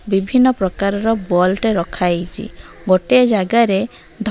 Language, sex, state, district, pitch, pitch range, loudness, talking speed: Odia, female, Odisha, Malkangiri, 200 Hz, 185-225 Hz, -16 LUFS, 140 wpm